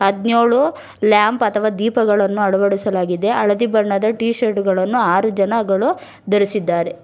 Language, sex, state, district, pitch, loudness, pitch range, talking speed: Kannada, female, Karnataka, Bangalore, 210 Hz, -17 LUFS, 195-230 Hz, 110 wpm